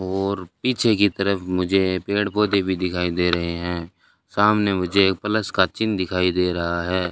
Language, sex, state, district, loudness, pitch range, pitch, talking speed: Hindi, male, Rajasthan, Bikaner, -21 LUFS, 90-100 Hz, 95 Hz, 175 wpm